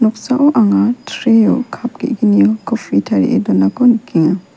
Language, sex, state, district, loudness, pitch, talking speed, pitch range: Garo, female, Meghalaya, West Garo Hills, -13 LUFS, 225 Hz, 130 wpm, 165-245 Hz